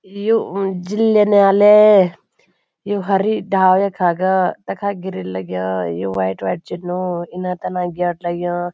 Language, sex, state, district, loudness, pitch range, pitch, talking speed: Garhwali, female, Uttarakhand, Uttarkashi, -17 LUFS, 175-200 Hz, 185 Hz, 125 wpm